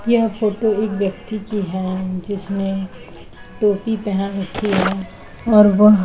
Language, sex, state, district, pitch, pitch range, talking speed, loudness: Hindi, female, Uttar Pradesh, Jalaun, 200 Hz, 195-215 Hz, 140 wpm, -19 LUFS